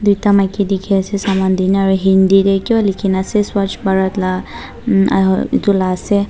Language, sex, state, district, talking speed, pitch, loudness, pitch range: Nagamese, female, Nagaland, Dimapur, 200 wpm, 195 Hz, -14 LUFS, 190-200 Hz